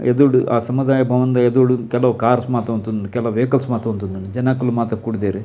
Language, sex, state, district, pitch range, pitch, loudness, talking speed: Tulu, male, Karnataka, Dakshina Kannada, 115-125 Hz, 120 Hz, -18 LUFS, 175 wpm